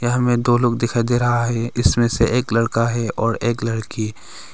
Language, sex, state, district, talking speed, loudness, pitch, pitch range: Hindi, male, Arunachal Pradesh, Longding, 210 wpm, -19 LUFS, 120 Hz, 115-120 Hz